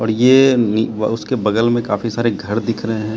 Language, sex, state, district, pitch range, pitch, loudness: Hindi, male, Bihar, Katihar, 110-120 Hz, 115 Hz, -16 LUFS